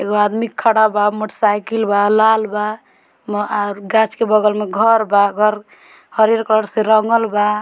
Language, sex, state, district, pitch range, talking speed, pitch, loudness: Bhojpuri, female, Bihar, Muzaffarpur, 210-220 Hz, 180 wpm, 215 Hz, -15 LUFS